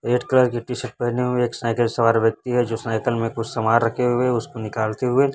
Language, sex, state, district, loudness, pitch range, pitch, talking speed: Hindi, male, Chhattisgarh, Raipur, -21 LUFS, 115-125 Hz, 120 Hz, 245 wpm